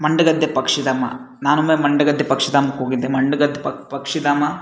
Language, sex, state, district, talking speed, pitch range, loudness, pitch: Kannada, male, Karnataka, Shimoga, 105 wpm, 135-150 Hz, -18 LUFS, 145 Hz